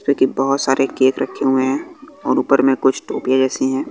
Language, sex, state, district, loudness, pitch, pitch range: Hindi, male, Bihar, West Champaran, -17 LUFS, 135 Hz, 130-140 Hz